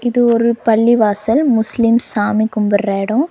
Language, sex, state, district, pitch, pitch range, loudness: Tamil, female, Tamil Nadu, Nilgiris, 225 Hz, 210-240 Hz, -14 LUFS